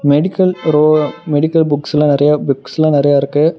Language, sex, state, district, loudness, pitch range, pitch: Tamil, male, Tamil Nadu, Namakkal, -13 LUFS, 145-155 Hz, 150 Hz